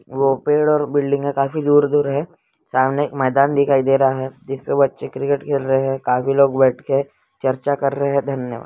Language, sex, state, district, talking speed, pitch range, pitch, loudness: Hindi, male, West Bengal, Malda, 180 wpm, 135-140 Hz, 140 Hz, -18 LUFS